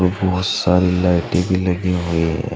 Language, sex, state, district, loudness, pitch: Hindi, male, Uttar Pradesh, Saharanpur, -18 LUFS, 90 Hz